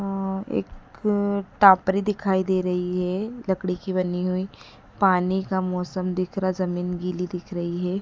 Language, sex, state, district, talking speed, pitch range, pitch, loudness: Hindi, female, Madhya Pradesh, Dhar, 165 wpm, 180-195 Hz, 185 Hz, -24 LUFS